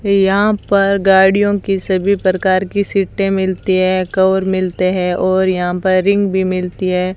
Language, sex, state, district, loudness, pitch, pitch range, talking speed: Hindi, female, Rajasthan, Bikaner, -14 LUFS, 190 Hz, 185-195 Hz, 175 wpm